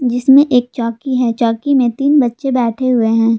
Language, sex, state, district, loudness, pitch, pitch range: Hindi, female, Jharkhand, Palamu, -14 LUFS, 245 Hz, 230-265 Hz